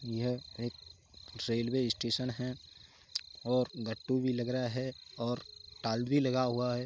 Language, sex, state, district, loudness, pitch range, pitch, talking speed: Hindi, male, Uttar Pradesh, Hamirpur, -35 LUFS, 115-125 Hz, 120 Hz, 155 wpm